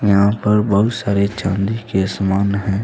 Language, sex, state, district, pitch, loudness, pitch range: Hindi, male, Jharkhand, Deoghar, 100 Hz, -17 LUFS, 95-105 Hz